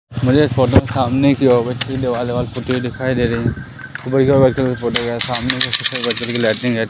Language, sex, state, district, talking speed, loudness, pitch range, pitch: Hindi, male, Madhya Pradesh, Umaria, 120 wpm, -16 LUFS, 120-130 Hz, 125 Hz